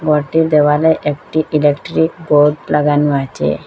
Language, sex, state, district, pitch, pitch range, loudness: Bengali, female, Assam, Hailakandi, 150 Hz, 145-160 Hz, -14 LUFS